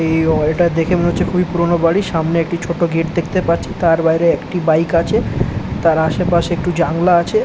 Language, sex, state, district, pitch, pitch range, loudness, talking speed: Bengali, male, West Bengal, Dakshin Dinajpur, 170 Hz, 165-175 Hz, -16 LUFS, 200 wpm